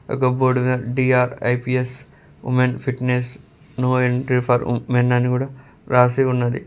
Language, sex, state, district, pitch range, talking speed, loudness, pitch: Telugu, male, Telangana, Mahabubabad, 125-130 Hz, 135 wpm, -19 LUFS, 125 Hz